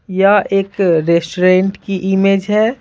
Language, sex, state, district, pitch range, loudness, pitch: Hindi, female, Bihar, Patna, 185-200 Hz, -14 LUFS, 195 Hz